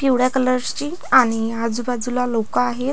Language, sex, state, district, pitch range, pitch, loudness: Marathi, female, Maharashtra, Pune, 235-260 Hz, 250 Hz, -20 LUFS